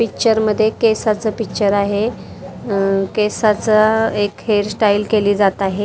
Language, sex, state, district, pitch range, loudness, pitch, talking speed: Marathi, female, Maharashtra, Mumbai Suburban, 205-220 Hz, -16 LUFS, 215 Hz, 125 wpm